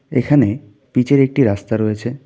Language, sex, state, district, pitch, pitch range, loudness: Bengali, male, West Bengal, Darjeeling, 125 Hz, 110-140 Hz, -16 LUFS